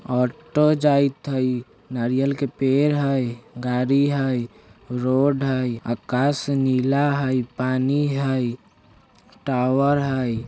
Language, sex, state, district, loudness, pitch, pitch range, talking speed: Bajjika, male, Bihar, Vaishali, -22 LUFS, 130 Hz, 125-140 Hz, 105 wpm